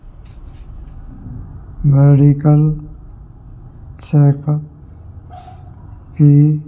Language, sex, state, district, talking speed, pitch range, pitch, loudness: Hindi, male, Rajasthan, Jaipur, 45 wpm, 105-150 Hz, 135 Hz, -12 LUFS